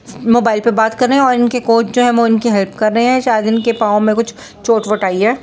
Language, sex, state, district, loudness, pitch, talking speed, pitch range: Hindi, female, Bihar, Saharsa, -13 LUFS, 230 Hz, 265 wpm, 215-240 Hz